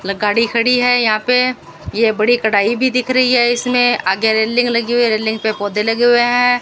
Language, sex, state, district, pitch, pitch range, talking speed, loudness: Hindi, female, Rajasthan, Bikaner, 235 Hz, 220-245 Hz, 215 wpm, -14 LUFS